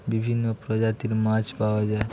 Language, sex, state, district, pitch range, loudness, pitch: Bengali, male, West Bengal, Paschim Medinipur, 110-115 Hz, -25 LUFS, 110 Hz